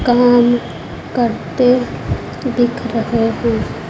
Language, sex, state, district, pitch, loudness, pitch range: Hindi, female, Chhattisgarh, Raipur, 240 Hz, -16 LUFS, 230-245 Hz